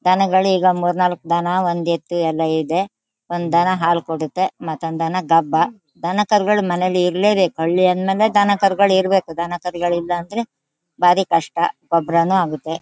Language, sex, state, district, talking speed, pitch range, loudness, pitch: Kannada, female, Karnataka, Shimoga, 160 wpm, 170-190 Hz, -18 LUFS, 175 Hz